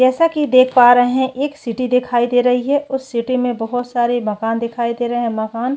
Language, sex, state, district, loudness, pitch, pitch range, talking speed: Hindi, female, Chhattisgarh, Kabirdham, -16 LUFS, 245 Hz, 240-255 Hz, 240 wpm